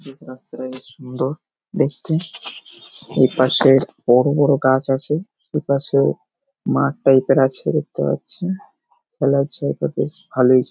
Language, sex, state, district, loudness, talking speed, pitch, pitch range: Bengali, male, West Bengal, Paschim Medinipur, -18 LUFS, 110 wpm, 135 Hz, 130-150 Hz